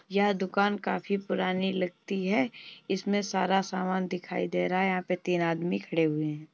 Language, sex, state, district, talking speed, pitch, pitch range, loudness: Hindi, female, Uttar Pradesh, Muzaffarnagar, 185 wpm, 185 Hz, 180-195 Hz, -29 LUFS